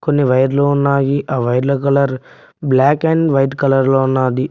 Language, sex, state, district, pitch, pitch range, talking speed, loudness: Telugu, male, Telangana, Mahabubabad, 135 Hz, 130-140 Hz, 160 wpm, -15 LUFS